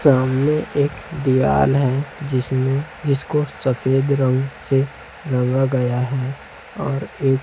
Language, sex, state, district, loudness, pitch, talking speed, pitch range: Hindi, male, Chhattisgarh, Raipur, -20 LUFS, 135 Hz, 115 wpm, 130-140 Hz